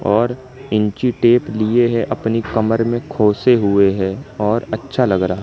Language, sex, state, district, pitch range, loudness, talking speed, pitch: Hindi, male, Madhya Pradesh, Katni, 105-120 Hz, -17 LUFS, 175 wpm, 115 Hz